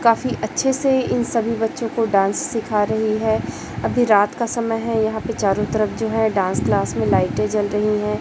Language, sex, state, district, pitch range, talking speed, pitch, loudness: Hindi, female, Chhattisgarh, Raipur, 210-230 Hz, 210 wpm, 220 Hz, -20 LUFS